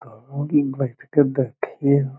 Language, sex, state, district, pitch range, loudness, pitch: Magahi, male, Bihar, Lakhisarai, 135-145 Hz, -22 LUFS, 140 Hz